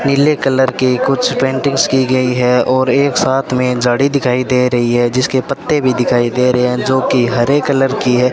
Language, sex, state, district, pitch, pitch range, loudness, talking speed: Hindi, male, Rajasthan, Bikaner, 130 Hz, 125-135 Hz, -13 LUFS, 215 wpm